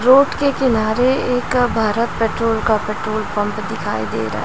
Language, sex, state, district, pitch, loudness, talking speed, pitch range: Hindi, female, Chhattisgarh, Raipur, 225 Hz, -18 LUFS, 160 wpm, 215-250 Hz